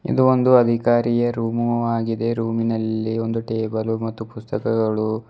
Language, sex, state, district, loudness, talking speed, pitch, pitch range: Kannada, male, Karnataka, Bidar, -21 LUFS, 125 wpm, 115 Hz, 110-120 Hz